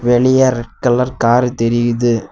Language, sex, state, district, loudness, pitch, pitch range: Tamil, male, Tamil Nadu, Kanyakumari, -14 LUFS, 120 Hz, 120-125 Hz